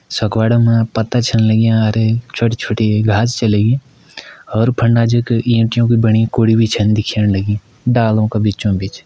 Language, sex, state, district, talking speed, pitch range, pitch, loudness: Kumaoni, male, Uttarakhand, Uttarkashi, 165 wpm, 110-115 Hz, 115 Hz, -14 LUFS